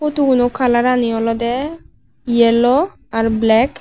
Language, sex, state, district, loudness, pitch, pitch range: Chakma, female, Tripura, Unakoti, -15 LUFS, 245 Hz, 230-265 Hz